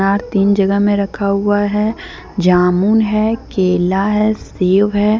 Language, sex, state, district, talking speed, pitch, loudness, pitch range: Hindi, female, Jharkhand, Deoghar, 140 wpm, 205 Hz, -15 LUFS, 195-210 Hz